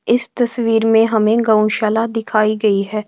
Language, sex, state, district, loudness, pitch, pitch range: Marwari, female, Rajasthan, Churu, -15 LUFS, 220 Hz, 215-230 Hz